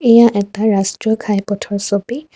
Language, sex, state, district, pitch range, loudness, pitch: Assamese, female, Assam, Kamrup Metropolitan, 200-230 Hz, -16 LUFS, 210 Hz